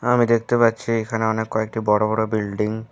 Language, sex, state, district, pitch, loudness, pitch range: Bengali, male, West Bengal, Alipurduar, 110 Hz, -21 LUFS, 110-115 Hz